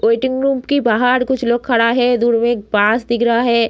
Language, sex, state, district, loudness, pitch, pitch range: Hindi, female, Bihar, Muzaffarpur, -15 LUFS, 235 Hz, 230-250 Hz